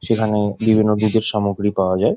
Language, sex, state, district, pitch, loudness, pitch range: Bengali, male, West Bengal, Jhargram, 105 Hz, -18 LUFS, 100-110 Hz